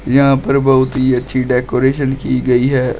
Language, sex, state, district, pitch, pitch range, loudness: Hindi, male, Uttar Pradesh, Shamli, 130 Hz, 125-135 Hz, -14 LUFS